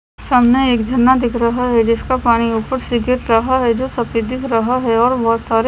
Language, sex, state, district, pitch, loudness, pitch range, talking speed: Hindi, female, Himachal Pradesh, Shimla, 240 Hz, -15 LUFS, 230-255 Hz, 220 wpm